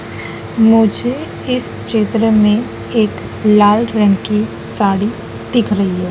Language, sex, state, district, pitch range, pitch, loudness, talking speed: Hindi, female, Madhya Pradesh, Dhar, 205-225 Hz, 215 Hz, -14 LUFS, 120 wpm